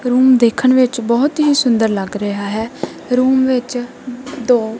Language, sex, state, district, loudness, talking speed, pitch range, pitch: Punjabi, female, Punjab, Kapurthala, -15 LUFS, 150 wpm, 230-255 Hz, 250 Hz